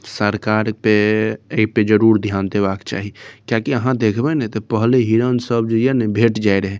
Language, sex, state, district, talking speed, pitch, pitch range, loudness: Maithili, male, Bihar, Saharsa, 195 wpm, 110 Hz, 105-115 Hz, -17 LUFS